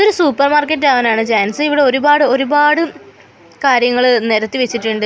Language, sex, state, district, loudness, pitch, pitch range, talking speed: Malayalam, female, Kerala, Kollam, -13 LUFS, 270 Hz, 235-295 Hz, 120 wpm